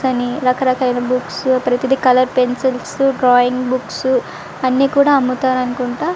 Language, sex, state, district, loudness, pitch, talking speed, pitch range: Telugu, female, Andhra Pradesh, Visakhapatnam, -16 LUFS, 255 Hz, 125 wpm, 250-260 Hz